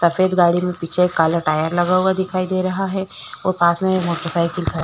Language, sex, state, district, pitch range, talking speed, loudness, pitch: Hindi, female, Chhattisgarh, Korba, 170-185 Hz, 235 wpm, -19 LUFS, 180 Hz